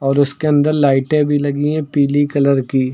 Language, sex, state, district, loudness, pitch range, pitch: Hindi, male, Uttar Pradesh, Lucknow, -15 LUFS, 140-145 Hz, 145 Hz